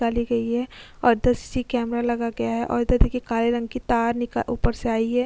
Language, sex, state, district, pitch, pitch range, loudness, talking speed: Hindi, female, Chhattisgarh, Sukma, 235 Hz, 230-245 Hz, -23 LUFS, 240 wpm